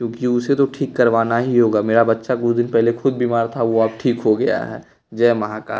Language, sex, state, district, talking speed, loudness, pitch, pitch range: Hindi, male, Bihar, West Champaran, 250 wpm, -18 LUFS, 120 Hz, 115-125 Hz